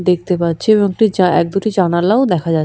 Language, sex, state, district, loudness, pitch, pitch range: Bengali, female, West Bengal, Purulia, -14 LUFS, 180 Hz, 170-210 Hz